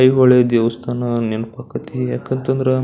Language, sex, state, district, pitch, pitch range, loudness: Kannada, male, Karnataka, Belgaum, 120 Hz, 115-130 Hz, -17 LUFS